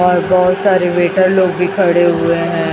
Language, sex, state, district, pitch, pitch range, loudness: Hindi, female, Chhattisgarh, Raipur, 180 Hz, 175-185 Hz, -13 LUFS